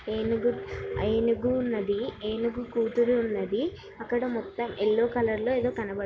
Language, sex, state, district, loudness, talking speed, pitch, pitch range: Telugu, female, Telangana, Nalgonda, -28 LUFS, 140 wpm, 230 Hz, 215-240 Hz